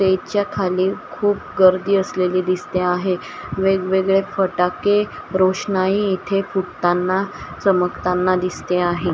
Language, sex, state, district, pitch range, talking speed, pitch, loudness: Marathi, female, Maharashtra, Washim, 180-195 Hz, 100 wpm, 185 Hz, -19 LUFS